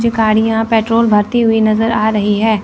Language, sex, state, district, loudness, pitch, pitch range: Hindi, female, Chandigarh, Chandigarh, -13 LUFS, 220 Hz, 215-225 Hz